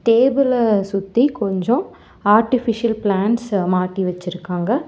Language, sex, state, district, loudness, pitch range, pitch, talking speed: Tamil, male, Tamil Nadu, Chennai, -18 LUFS, 190-240 Hz, 215 Hz, 85 wpm